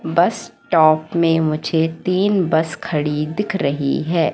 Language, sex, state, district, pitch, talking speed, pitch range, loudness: Hindi, female, Madhya Pradesh, Katni, 160 Hz, 140 wpm, 155-175 Hz, -18 LUFS